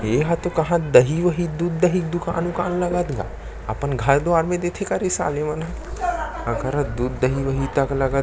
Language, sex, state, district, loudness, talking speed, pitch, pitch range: Chhattisgarhi, male, Chhattisgarh, Sarguja, -22 LUFS, 195 wpm, 160 Hz, 135-175 Hz